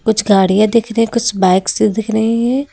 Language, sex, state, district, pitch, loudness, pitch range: Hindi, female, Uttar Pradesh, Lucknow, 220 Hz, -13 LUFS, 200-230 Hz